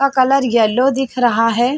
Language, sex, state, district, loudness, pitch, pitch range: Hindi, female, Chhattisgarh, Sarguja, -15 LUFS, 255 Hz, 240-270 Hz